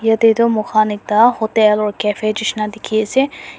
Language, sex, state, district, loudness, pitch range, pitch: Nagamese, female, Nagaland, Dimapur, -15 LUFS, 215-225 Hz, 220 Hz